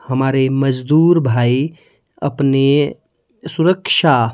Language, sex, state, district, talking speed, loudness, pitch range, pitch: Hindi, male, Himachal Pradesh, Shimla, 70 wpm, -15 LUFS, 130-160 Hz, 140 Hz